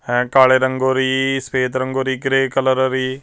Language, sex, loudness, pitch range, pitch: Punjabi, male, -17 LUFS, 130-135 Hz, 130 Hz